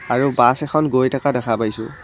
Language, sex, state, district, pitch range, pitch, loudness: Assamese, male, Assam, Kamrup Metropolitan, 115-140 Hz, 130 Hz, -18 LUFS